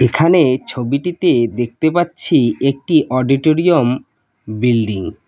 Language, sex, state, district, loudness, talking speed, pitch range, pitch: Bengali, male, West Bengal, Cooch Behar, -15 LUFS, 90 wpm, 120-160 Hz, 130 Hz